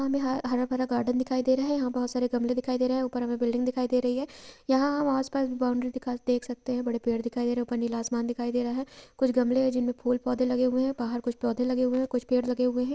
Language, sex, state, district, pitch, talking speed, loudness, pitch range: Maithili, female, Bihar, Purnia, 250 Hz, 295 wpm, -28 LUFS, 245-255 Hz